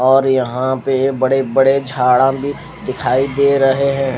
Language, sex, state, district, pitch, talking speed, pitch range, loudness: Hindi, male, Odisha, Khordha, 135 Hz, 200 wpm, 130-135 Hz, -15 LUFS